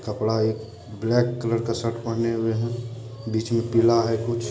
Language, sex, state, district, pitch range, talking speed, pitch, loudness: Hindi, male, Bihar, Purnia, 110-115 Hz, 185 wpm, 115 Hz, -24 LUFS